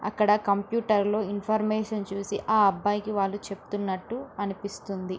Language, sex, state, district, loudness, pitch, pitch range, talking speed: Telugu, female, Andhra Pradesh, Srikakulam, -27 LUFS, 205 Hz, 200-215 Hz, 105 wpm